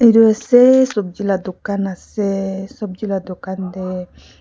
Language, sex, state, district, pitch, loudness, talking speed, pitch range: Nagamese, female, Nagaland, Kohima, 195 Hz, -17 LUFS, 135 wpm, 185-215 Hz